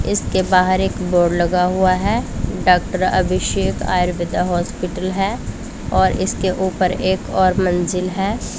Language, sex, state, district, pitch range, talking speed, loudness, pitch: Hindi, female, Punjab, Pathankot, 180-190 Hz, 135 wpm, -18 LUFS, 185 Hz